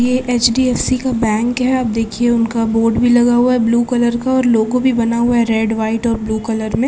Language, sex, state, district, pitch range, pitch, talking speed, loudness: Hindi, female, Maharashtra, Aurangabad, 225-250 Hz, 235 Hz, 270 wpm, -15 LUFS